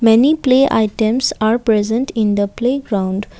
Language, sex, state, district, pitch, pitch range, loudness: English, female, Assam, Kamrup Metropolitan, 225 Hz, 210-250 Hz, -15 LUFS